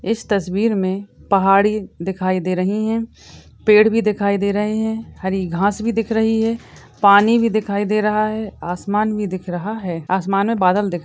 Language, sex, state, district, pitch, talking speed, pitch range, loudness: Hindi, female, Maharashtra, Sindhudurg, 205 Hz, 190 wpm, 190-220 Hz, -18 LUFS